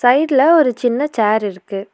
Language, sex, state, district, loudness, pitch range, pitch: Tamil, female, Tamil Nadu, Nilgiris, -15 LUFS, 210-275 Hz, 245 Hz